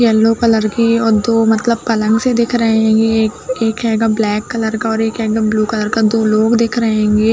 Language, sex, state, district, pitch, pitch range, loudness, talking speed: Hindi, female, Uttar Pradesh, Budaun, 225 Hz, 220-230 Hz, -14 LUFS, 230 wpm